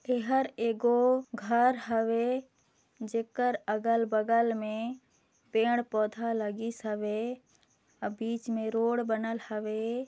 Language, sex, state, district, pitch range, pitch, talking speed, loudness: Hindi, female, Chhattisgarh, Sarguja, 220-240 Hz, 230 Hz, 105 wpm, -30 LUFS